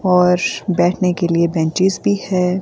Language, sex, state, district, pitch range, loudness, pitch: Hindi, female, Himachal Pradesh, Shimla, 175-185 Hz, -16 LUFS, 180 Hz